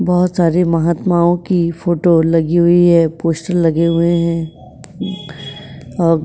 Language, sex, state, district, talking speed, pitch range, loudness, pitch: Hindi, female, Maharashtra, Chandrapur, 125 wpm, 165-175 Hz, -14 LUFS, 170 Hz